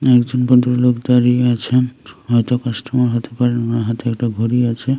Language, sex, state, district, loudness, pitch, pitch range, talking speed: Bengali, male, Tripura, Unakoti, -16 LUFS, 125 Hz, 120-125 Hz, 155 wpm